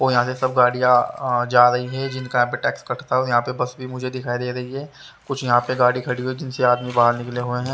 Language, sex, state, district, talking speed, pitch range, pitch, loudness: Hindi, male, Haryana, Rohtak, 285 wpm, 125-130 Hz, 125 Hz, -20 LUFS